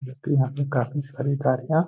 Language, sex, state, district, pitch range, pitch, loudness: Hindi, male, Bihar, Gaya, 130-145 Hz, 140 Hz, -25 LUFS